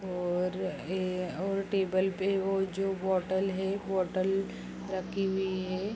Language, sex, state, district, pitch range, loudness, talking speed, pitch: Hindi, female, Uttar Pradesh, Jalaun, 185-195 Hz, -32 LUFS, 130 wpm, 190 Hz